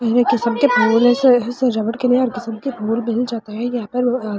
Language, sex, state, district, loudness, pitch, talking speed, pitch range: Hindi, female, Delhi, New Delhi, -17 LUFS, 240 Hz, 220 wpm, 230-250 Hz